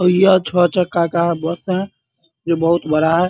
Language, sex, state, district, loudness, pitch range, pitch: Hindi, male, Bihar, Muzaffarpur, -17 LUFS, 165-180 Hz, 170 Hz